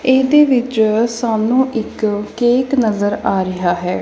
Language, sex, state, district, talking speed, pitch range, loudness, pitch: Punjabi, female, Punjab, Kapurthala, 135 wpm, 205-255 Hz, -15 LUFS, 225 Hz